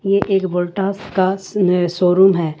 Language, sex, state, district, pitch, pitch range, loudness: Hindi, female, Jharkhand, Ranchi, 190 Hz, 180-195 Hz, -16 LUFS